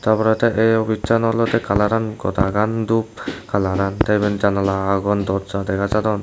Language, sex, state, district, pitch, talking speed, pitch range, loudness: Chakma, male, Tripura, Dhalai, 105 Hz, 155 wpm, 100-110 Hz, -19 LUFS